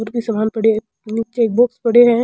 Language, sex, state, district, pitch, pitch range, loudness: Rajasthani, female, Rajasthan, Churu, 230 Hz, 220-240 Hz, -17 LUFS